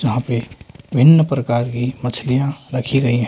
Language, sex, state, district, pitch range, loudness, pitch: Hindi, male, Haryana, Charkhi Dadri, 120-140 Hz, -17 LUFS, 125 Hz